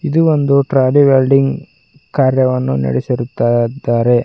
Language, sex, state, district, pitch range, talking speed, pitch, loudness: Kannada, male, Karnataka, Koppal, 120-140 Hz, 100 wpm, 130 Hz, -14 LUFS